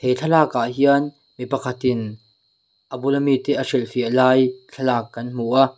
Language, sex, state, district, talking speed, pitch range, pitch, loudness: Mizo, male, Mizoram, Aizawl, 145 wpm, 125-135 Hz, 130 Hz, -20 LUFS